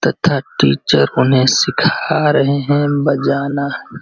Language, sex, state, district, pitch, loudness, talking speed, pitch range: Hindi, male, Uttar Pradesh, Varanasi, 140 Hz, -14 LUFS, 105 wpm, 130-145 Hz